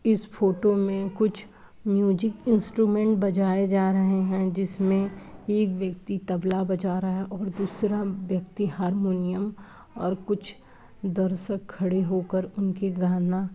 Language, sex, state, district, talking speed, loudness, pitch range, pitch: Hindi, male, Uttar Pradesh, Etah, 130 wpm, -26 LUFS, 185-205 Hz, 195 Hz